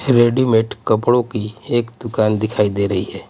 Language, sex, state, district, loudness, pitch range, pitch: Hindi, male, Punjab, Pathankot, -18 LUFS, 105-120 Hz, 110 Hz